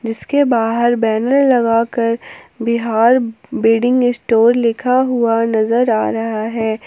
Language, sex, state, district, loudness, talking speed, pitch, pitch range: Hindi, female, Jharkhand, Palamu, -15 LUFS, 115 wpm, 230 Hz, 225-245 Hz